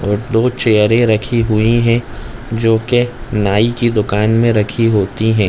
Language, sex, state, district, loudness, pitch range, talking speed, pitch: Hindi, male, Chhattisgarh, Bilaspur, -14 LUFS, 105-115 Hz, 165 wpm, 115 Hz